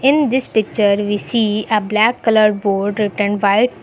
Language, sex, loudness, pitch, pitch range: English, female, -16 LUFS, 210 Hz, 205-225 Hz